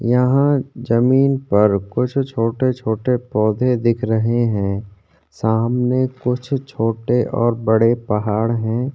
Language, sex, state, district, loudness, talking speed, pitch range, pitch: Hindi, male, Chhattisgarh, Korba, -18 LUFS, 105 wpm, 110-125 Hz, 120 Hz